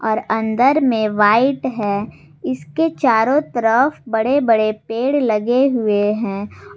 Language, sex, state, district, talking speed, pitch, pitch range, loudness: Hindi, female, Jharkhand, Garhwa, 115 wpm, 225 Hz, 210-260 Hz, -17 LUFS